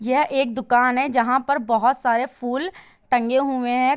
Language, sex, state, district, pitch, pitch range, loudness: Hindi, female, Bihar, Saran, 255 Hz, 245-270 Hz, -21 LUFS